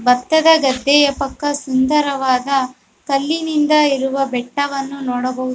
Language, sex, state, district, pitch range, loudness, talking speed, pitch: Kannada, female, Karnataka, Bellary, 260-290 Hz, -16 LUFS, 85 wpm, 275 Hz